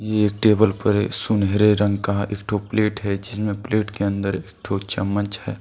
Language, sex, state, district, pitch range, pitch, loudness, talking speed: Hindi, male, Jharkhand, Deoghar, 100-105 Hz, 105 Hz, -21 LUFS, 205 wpm